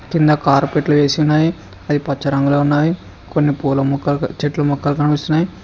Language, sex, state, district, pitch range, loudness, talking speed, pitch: Telugu, male, Telangana, Mahabubabad, 140-150 Hz, -16 LUFS, 150 wpm, 145 Hz